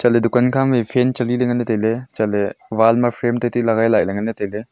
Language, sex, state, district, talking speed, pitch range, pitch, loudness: Wancho, male, Arunachal Pradesh, Longding, 255 wpm, 110-120 Hz, 120 Hz, -18 LUFS